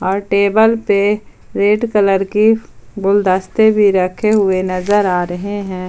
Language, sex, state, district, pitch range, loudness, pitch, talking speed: Hindi, female, Jharkhand, Palamu, 190-210 Hz, -14 LUFS, 200 Hz, 130 wpm